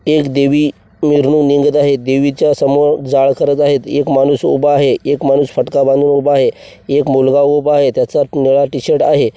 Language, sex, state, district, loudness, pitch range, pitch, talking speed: Marathi, male, Maharashtra, Washim, -12 LUFS, 140-145 Hz, 140 Hz, 180 wpm